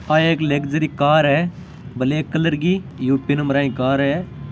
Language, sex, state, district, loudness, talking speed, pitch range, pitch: Hindi, female, Rajasthan, Churu, -19 LUFS, 170 wpm, 140-160 Hz, 145 Hz